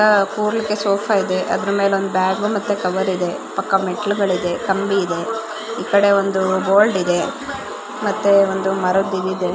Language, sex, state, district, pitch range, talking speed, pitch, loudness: Kannada, female, Karnataka, Bijapur, 185-205 Hz, 150 wpm, 195 Hz, -18 LUFS